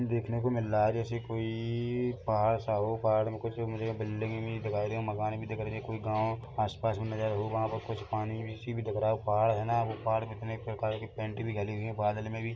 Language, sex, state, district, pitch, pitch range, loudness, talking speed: Hindi, male, Chhattisgarh, Bilaspur, 110 Hz, 110-115 Hz, -33 LUFS, 250 wpm